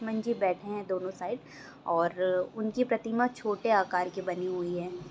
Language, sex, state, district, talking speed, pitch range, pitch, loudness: Bhojpuri, female, Bihar, Saran, 175 wpm, 180-220 Hz, 190 Hz, -31 LUFS